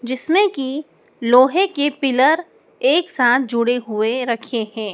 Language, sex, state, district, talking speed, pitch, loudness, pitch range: Hindi, male, Madhya Pradesh, Dhar, 135 wpm, 255 Hz, -18 LUFS, 240-290 Hz